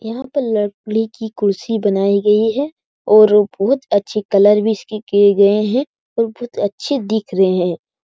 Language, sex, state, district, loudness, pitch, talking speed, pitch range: Hindi, female, Bihar, Jahanabad, -16 LUFS, 215 Hz, 170 wpm, 200-225 Hz